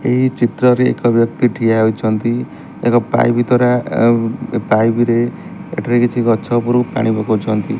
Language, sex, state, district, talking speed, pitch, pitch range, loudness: Odia, male, Odisha, Malkangiri, 145 wpm, 120 Hz, 115-120 Hz, -15 LUFS